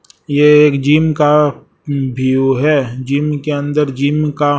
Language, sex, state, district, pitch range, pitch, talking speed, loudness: Hindi, male, Chhattisgarh, Raipur, 140-150 Hz, 145 Hz, 145 wpm, -13 LUFS